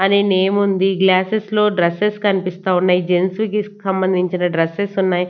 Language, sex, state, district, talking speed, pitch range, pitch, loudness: Telugu, female, Andhra Pradesh, Annamaya, 145 wpm, 180-200 Hz, 190 Hz, -17 LUFS